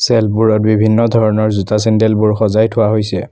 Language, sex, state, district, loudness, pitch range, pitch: Assamese, male, Assam, Kamrup Metropolitan, -13 LUFS, 105-110 Hz, 110 Hz